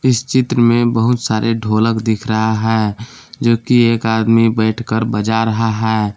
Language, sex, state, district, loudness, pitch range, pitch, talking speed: Hindi, male, Jharkhand, Palamu, -15 LUFS, 110-120 Hz, 115 Hz, 175 wpm